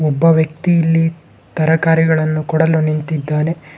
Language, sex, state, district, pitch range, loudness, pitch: Kannada, male, Karnataka, Bangalore, 155-165 Hz, -15 LUFS, 160 Hz